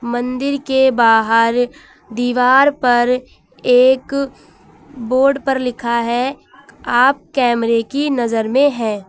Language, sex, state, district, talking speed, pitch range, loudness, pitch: Hindi, female, Uttar Pradesh, Lucknow, 105 wpm, 235-270 Hz, -15 LUFS, 250 Hz